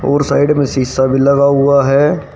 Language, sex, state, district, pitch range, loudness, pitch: Hindi, male, Haryana, Rohtak, 135-145 Hz, -12 LUFS, 140 Hz